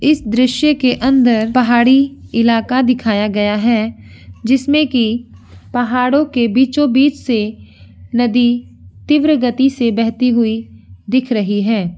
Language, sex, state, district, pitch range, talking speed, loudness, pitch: Hindi, female, Bihar, Begusarai, 215-260 Hz, 120 wpm, -14 LUFS, 240 Hz